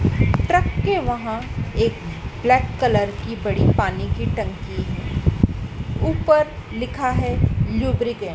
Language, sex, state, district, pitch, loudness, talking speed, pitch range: Hindi, female, Madhya Pradesh, Dhar, 240 Hz, -21 LUFS, 120 wpm, 220-255 Hz